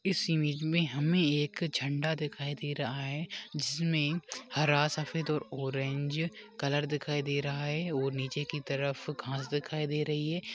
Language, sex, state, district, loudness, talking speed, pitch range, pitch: Hindi, male, Goa, North and South Goa, -32 LUFS, 165 wpm, 140-160 Hz, 150 Hz